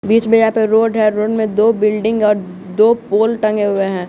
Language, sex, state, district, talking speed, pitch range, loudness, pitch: Hindi, male, Bihar, West Champaran, 235 wpm, 210-225 Hz, -14 LUFS, 215 Hz